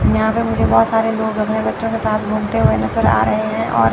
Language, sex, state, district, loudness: Hindi, female, Chandigarh, Chandigarh, -17 LUFS